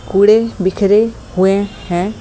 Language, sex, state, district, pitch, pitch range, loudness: Hindi, male, Delhi, New Delhi, 200 Hz, 190-215 Hz, -14 LUFS